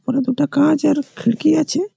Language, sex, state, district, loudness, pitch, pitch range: Bengali, male, West Bengal, Malda, -17 LUFS, 290 Hz, 260-310 Hz